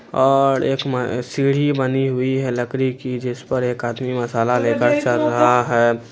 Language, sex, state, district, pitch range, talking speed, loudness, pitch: Hindi, male, Bihar, Araria, 120-135 Hz, 165 wpm, -19 LUFS, 125 Hz